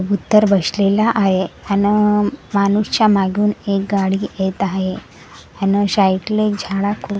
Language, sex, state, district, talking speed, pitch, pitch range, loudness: Marathi, female, Maharashtra, Gondia, 135 wpm, 200 Hz, 195-210 Hz, -17 LUFS